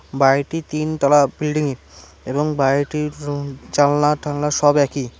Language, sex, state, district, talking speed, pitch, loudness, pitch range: Bengali, male, West Bengal, Cooch Behar, 115 wpm, 145 Hz, -19 LUFS, 140-150 Hz